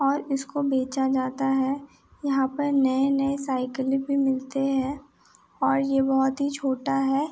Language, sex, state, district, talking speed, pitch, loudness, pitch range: Hindi, female, Uttar Pradesh, Etah, 130 wpm, 270 Hz, -25 LUFS, 265-275 Hz